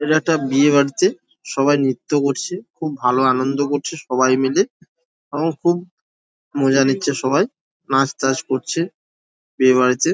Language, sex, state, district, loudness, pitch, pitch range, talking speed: Bengali, male, West Bengal, Jhargram, -18 LUFS, 140 Hz, 130-160 Hz, 125 wpm